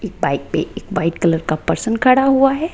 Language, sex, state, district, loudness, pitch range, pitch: Hindi, female, Rajasthan, Jaipur, -17 LUFS, 170-270 Hz, 225 Hz